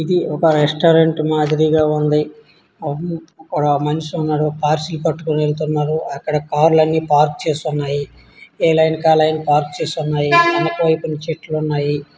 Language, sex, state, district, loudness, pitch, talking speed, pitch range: Telugu, male, Andhra Pradesh, Srikakulam, -17 LUFS, 155 Hz, 130 wpm, 150-160 Hz